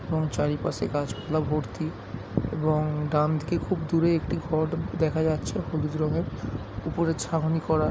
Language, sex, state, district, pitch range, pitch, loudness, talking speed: Bengali, male, West Bengal, Jhargram, 150-160 Hz, 155 Hz, -27 LUFS, 130 wpm